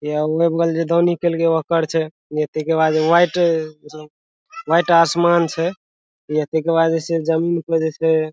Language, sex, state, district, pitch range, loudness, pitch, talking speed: Maithili, male, Bihar, Madhepura, 155-170 Hz, -18 LUFS, 165 Hz, 145 wpm